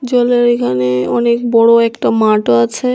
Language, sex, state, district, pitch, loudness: Bengali, female, Tripura, West Tripura, 230 Hz, -12 LUFS